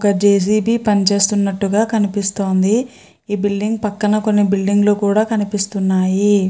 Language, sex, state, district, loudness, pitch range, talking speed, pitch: Telugu, female, Andhra Pradesh, Guntur, -16 LUFS, 200-210 Hz, 110 wpm, 205 Hz